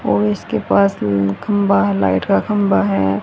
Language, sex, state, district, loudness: Hindi, female, Haryana, Rohtak, -16 LUFS